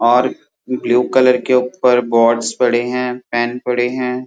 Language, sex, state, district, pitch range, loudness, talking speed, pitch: Hindi, male, Uttar Pradesh, Muzaffarnagar, 120-125 Hz, -16 LUFS, 155 wpm, 125 Hz